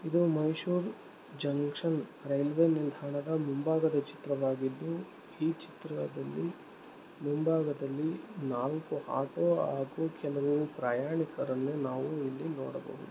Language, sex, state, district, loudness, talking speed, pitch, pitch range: Kannada, male, Karnataka, Mysore, -33 LUFS, 85 wpm, 145 Hz, 140-160 Hz